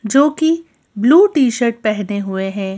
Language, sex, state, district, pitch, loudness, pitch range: Hindi, female, Madhya Pradesh, Bhopal, 235 Hz, -15 LUFS, 205-295 Hz